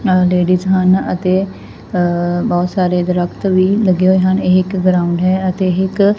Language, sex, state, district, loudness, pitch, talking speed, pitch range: Punjabi, male, Punjab, Fazilka, -14 LUFS, 185 Hz, 175 wpm, 180-190 Hz